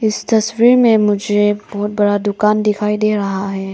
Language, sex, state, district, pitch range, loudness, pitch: Hindi, female, Arunachal Pradesh, Papum Pare, 205-215 Hz, -15 LUFS, 210 Hz